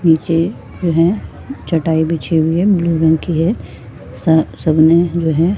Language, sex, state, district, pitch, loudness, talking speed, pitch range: Hindi, female, Jharkhand, Sahebganj, 165 Hz, -15 LUFS, 150 wpm, 160-175 Hz